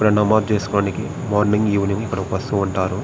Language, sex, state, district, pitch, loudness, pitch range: Telugu, male, Andhra Pradesh, Srikakulam, 105 Hz, -20 LUFS, 100-105 Hz